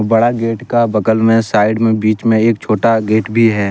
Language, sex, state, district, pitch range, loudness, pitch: Hindi, male, Jharkhand, Deoghar, 110-115 Hz, -13 LUFS, 110 Hz